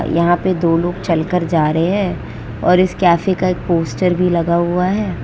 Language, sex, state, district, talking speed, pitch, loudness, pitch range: Hindi, female, West Bengal, Kolkata, 205 wpm, 175 Hz, -16 LUFS, 170-185 Hz